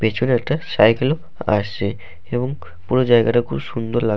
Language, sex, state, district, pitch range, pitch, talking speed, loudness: Bengali, male, West Bengal, Malda, 105-125 Hz, 115 Hz, 145 wpm, -19 LUFS